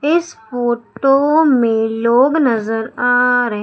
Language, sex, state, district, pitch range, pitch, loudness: Hindi, female, Madhya Pradesh, Umaria, 225-275 Hz, 245 Hz, -15 LUFS